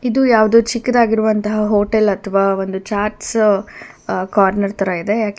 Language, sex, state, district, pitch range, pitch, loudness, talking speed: Kannada, female, Karnataka, Bangalore, 195-220 Hz, 210 Hz, -16 LUFS, 110 wpm